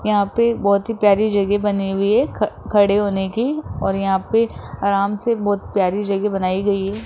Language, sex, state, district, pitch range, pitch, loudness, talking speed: Hindi, female, Rajasthan, Jaipur, 195-210 Hz, 205 Hz, -19 LUFS, 195 wpm